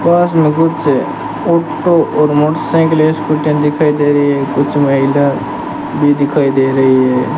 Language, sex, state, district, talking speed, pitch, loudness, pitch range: Hindi, male, Rajasthan, Bikaner, 145 wpm, 150 Hz, -12 LUFS, 140-160 Hz